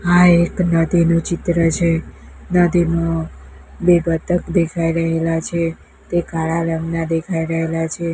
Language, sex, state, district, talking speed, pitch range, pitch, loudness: Gujarati, female, Gujarat, Gandhinagar, 125 wpm, 165-170 Hz, 165 Hz, -18 LUFS